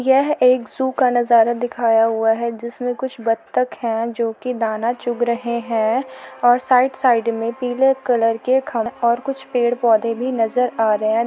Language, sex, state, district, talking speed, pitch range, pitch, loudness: Hindi, female, Uttar Pradesh, Muzaffarnagar, 165 wpm, 230-250 Hz, 240 Hz, -18 LUFS